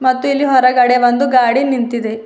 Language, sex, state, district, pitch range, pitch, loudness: Kannada, female, Karnataka, Bidar, 240-265 Hz, 255 Hz, -13 LUFS